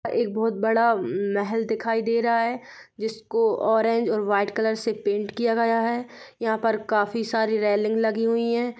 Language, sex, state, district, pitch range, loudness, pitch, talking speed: Hindi, female, Bihar, East Champaran, 220-230 Hz, -24 LUFS, 225 Hz, 185 wpm